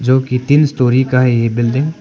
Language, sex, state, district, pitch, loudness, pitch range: Hindi, male, Arunachal Pradesh, Papum Pare, 125 Hz, -13 LUFS, 125-140 Hz